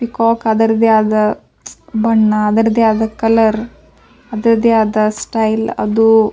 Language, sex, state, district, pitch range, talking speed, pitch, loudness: Kannada, female, Karnataka, Bijapur, 215-230 Hz, 115 wpm, 225 Hz, -13 LUFS